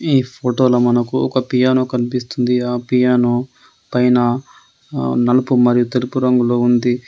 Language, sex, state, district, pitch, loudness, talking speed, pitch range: Telugu, male, Telangana, Adilabad, 125 Hz, -16 LUFS, 125 wpm, 120-125 Hz